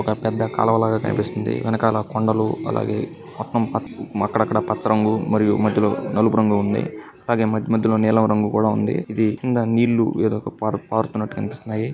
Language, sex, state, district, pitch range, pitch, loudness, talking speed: Telugu, male, Telangana, Nalgonda, 105-110 Hz, 110 Hz, -21 LUFS, 135 wpm